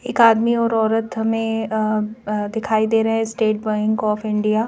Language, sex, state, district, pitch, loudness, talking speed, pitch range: Hindi, female, Madhya Pradesh, Bhopal, 220 Hz, -19 LUFS, 205 wpm, 215-225 Hz